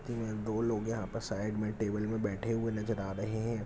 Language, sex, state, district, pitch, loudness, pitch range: Hindi, male, Bihar, Jamui, 110 Hz, -35 LUFS, 105-115 Hz